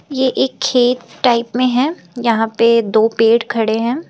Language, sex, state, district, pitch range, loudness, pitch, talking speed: Hindi, female, Uttar Pradesh, Lucknow, 230-255 Hz, -15 LUFS, 240 Hz, 175 wpm